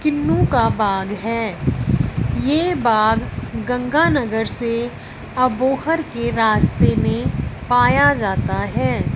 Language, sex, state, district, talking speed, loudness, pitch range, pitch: Hindi, female, Punjab, Fazilka, 100 wpm, -18 LUFS, 225-290 Hz, 245 Hz